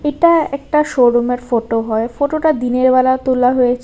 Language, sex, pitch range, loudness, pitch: Bengali, female, 245-290 Hz, -15 LUFS, 255 Hz